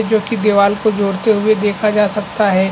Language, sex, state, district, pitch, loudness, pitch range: Hindi, male, Chhattisgarh, Bastar, 210 Hz, -15 LUFS, 200-215 Hz